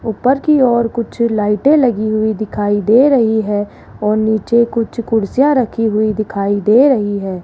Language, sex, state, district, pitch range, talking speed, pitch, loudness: Hindi, female, Rajasthan, Jaipur, 210-235 Hz, 170 wpm, 220 Hz, -14 LUFS